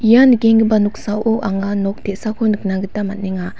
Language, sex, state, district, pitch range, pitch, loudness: Garo, female, Meghalaya, West Garo Hills, 195-225 Hz, 210 Hz, -16 LUFS